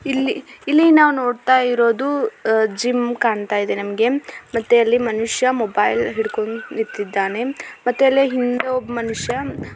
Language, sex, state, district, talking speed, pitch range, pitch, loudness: Kannada, female, Karnataka, Belgaum, 125 wpm, 225-265 Hz, 245 Hz, -18 LUFS